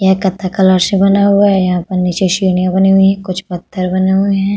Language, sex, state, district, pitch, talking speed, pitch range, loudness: Hindi, female, Uttar Pradesh, Budaun, 190 Hz, 235 wpm, 185-195 Hz, -12 LUFS